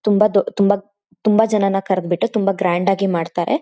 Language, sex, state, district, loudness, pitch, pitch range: Kannada, female, Karnataka, Shimoga, -18 LUFS, 195 Hz, 185-210 Hz